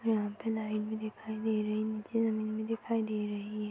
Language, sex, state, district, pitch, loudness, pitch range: Hindi, female, Uttar Pradesh, Ghazipur, 215 Hz, -34 LUFS, 215-220 Hz